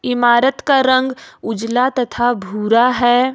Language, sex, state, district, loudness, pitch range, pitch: Hindi, female, Jharkhand, Ranchi, -15 LUFS, 235-255 Hz, 245 Hz